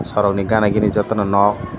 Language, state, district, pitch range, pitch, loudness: Kokborok, Tripura, Dhalai, 100-105 Hz, 105 Hz, -17 LUFS